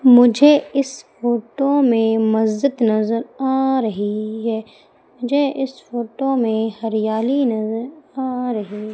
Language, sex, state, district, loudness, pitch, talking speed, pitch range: Hindi, female, Madhya Pradesh, Umaria, -19 LUFS, 235 Hz, 115 wpm, 220-265 Hz